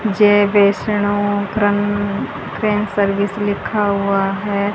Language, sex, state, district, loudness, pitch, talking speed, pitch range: Hindi, female, Haryana, Charkhi Dadri, -17 LUFS, 205 Hz, 100 wpm, 200-205 Hz